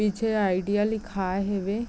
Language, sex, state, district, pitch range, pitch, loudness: Chhattisgarhi, female, Chhattisgarh, Raigarh, 195-215 Hz, 205 Hz, -26 LUFS